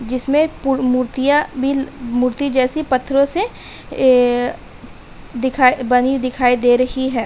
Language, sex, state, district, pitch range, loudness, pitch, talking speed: Hindi, female, Uttar Pradesh, Hamirpur, 250-275 Hz, -17 LUFS, 255 Hz, 105 wpm